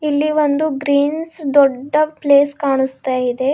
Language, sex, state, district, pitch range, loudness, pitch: Kannada, female, Karnataka, Bidar, 275-300 Hz, -16 LUFS, 285 Hz